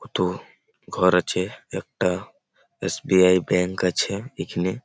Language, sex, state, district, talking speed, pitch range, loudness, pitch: Bengali, male, West Bengal, Malda, 110 wpm, 90-95 Hz, -23 LUFS, 90 Hz